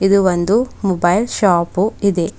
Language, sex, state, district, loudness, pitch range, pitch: Kannada, female, Karnataka, Bidar, -16 LUFS, 175-205 Hz, 195 Hz